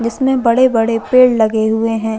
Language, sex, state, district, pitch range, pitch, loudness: Hindi, female, Chhattisgarh, Bastar, 220-255 Hz, 230 Hz, -13 LUFS